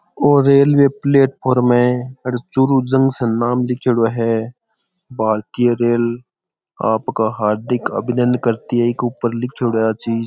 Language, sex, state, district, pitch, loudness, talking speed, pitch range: Rajasthani, male, Rajasthan, Churu, 120 Hz, -17 LUFS, 145 wpm, 115-130 Hz